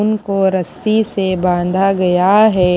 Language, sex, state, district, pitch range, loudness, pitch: Hindi, female, Maharashtra, Mumbai Suburban, 180-210 Hz, -14 LUFS, 190 Hz